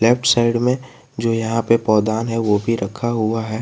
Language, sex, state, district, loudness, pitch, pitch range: Hindi, male, Jharkhand, Garhwa, -18 LUFS, 115 Hz, 110-120 Hz